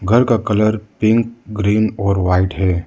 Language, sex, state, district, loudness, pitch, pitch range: Hindi, male, Arunachal Pradesh, Lower Dibang Valley, -16 LUFS, 105 Hz, 95-110 Hz